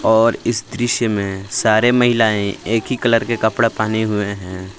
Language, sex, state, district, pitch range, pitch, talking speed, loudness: Hindi, male, Jharkhand, Palamu, 105-120 Hz, 110 Hz, 175 wpm, -17 LUFS